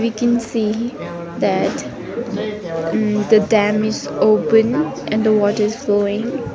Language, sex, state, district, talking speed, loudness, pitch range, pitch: English, female, Sikkim, Gangtok, 130 wpm, -18 LUFS, 210-230 Hz, 215 Hz